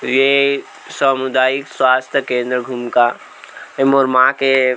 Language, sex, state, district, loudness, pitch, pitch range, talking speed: Chhattisgarhi, male, Chhattisgarh, Rajnandgaon, -15 LUFS, 130 Hz, 130-135 Hz, 115 wpm